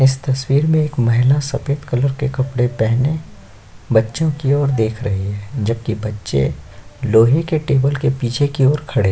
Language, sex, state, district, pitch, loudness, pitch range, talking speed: Hindi, male, Chhattisgarh, Korba, 130 Hz, -17 LUFS, 110-140 Hz, 170 wpm